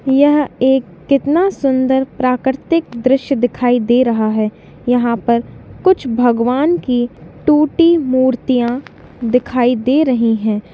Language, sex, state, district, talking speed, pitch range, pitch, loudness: Hindi, female, Bihar, East Champaran, 115 wpm, 240-275 Hz, 255 Hz, -15 LUFS